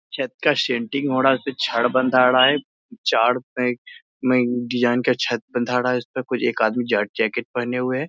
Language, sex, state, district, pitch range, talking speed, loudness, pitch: Hindi, male, Bihar, Muzaffarpur, 120-130 Hz, 215 wpm, -21 LUFS, 125 Hz